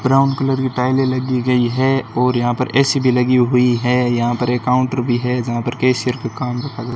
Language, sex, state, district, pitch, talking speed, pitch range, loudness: Hindi, male, Rajasthan, Bikaner, 125 Hz, 225 wpm, 120-130 Hz, -17 LUFS